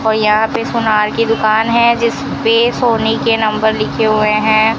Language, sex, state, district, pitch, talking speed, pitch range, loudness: Hindi, female, Rajasthan, Bikaner, 220 Hz, 190 wpm, 215-230 Hz, -13 LUFS